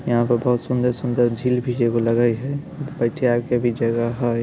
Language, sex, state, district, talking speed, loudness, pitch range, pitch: Hindi, male, Bihar, Samastipur, 205 wpm, -21 LUFS, 120-125 Hz, 120 Hz